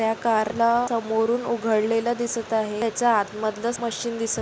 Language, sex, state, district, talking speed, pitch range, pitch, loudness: Marathi, female, Maharashtra, Solapur, 165 wpm, 220-235 Hz, 230 Hz, -23 LUFS